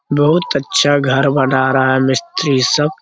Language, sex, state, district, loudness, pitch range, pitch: Hindi, male, Bihar, Jamui, -14 LUFS, 130-145 Hz, 140 Hz